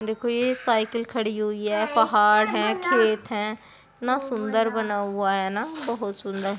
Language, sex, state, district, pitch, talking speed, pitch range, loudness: Hindi, female, Bihar, Jahanabad, 220 Hz, 165 wpm, 210-235 Hz, -24 LUFS